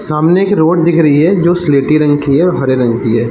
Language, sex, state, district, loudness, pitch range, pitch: Hindi, male, Jharkhand, Jamtara, -11 LUFS, 140-170 Hz, 155 Hz